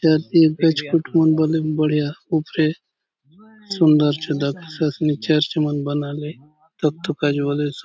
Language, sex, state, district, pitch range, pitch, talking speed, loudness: Halbi, male, Chhattisgarh, Bastar, 150-160 Hz, 155 Hz, 145 wpm, -20 LUFS